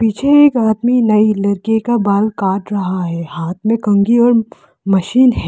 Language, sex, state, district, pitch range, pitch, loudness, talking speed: Hindi, female, Arunachal Pradesh, Lower Dibang Valley, 195-235 Hz, 215 Hz, -14 LUFS, 175 wpm